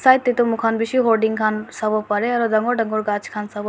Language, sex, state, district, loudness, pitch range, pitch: Nagamese, female, Nagaland, Dimapur, -20 LUFS, 215-235 Hz, 220 Hz